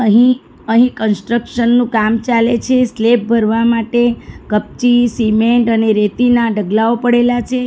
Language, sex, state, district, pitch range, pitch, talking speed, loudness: Gujarati, female, Gujarat, Valsad, 225-240 Hz, 235 Hz, 125 wpm, -13 LUFS